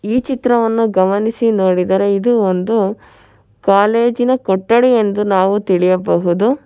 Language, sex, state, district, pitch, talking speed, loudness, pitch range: Kannada, female, Karnataka, Bangalore, 205 Hz, 100 wpm, -14 LUFS, 185-230 Hz